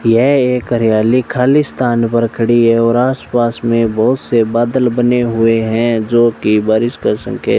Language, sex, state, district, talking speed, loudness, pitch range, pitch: Hindi, male, Rajasthan, Bikaner, 180 wpm, -13 LUFS, 115-125 Hz, 120 Hz